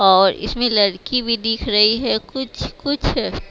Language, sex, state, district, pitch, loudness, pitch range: Hindi, female, Himachal Pradesh, Shimla, 225 Hz, -18 LUFS, 205-245 Hz